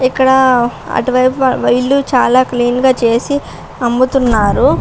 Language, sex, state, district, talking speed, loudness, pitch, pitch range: Telugu, female, Andhra Pradesh, Srikakulam, 100 wpm, -12 LUFS, 255 Hz, 240-260 Hz